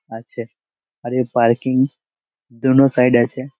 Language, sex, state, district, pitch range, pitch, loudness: Bengali, male, West Bengal, Malda, 120-130 Hz, 125 Hz, -17 LUFS